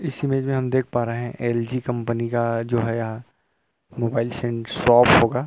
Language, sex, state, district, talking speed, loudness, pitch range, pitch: Hindi, male, Chhattisgarh, Rajnandgaon, 210 wpm, -22 LUFS, 115-125 Hz, 120 Hz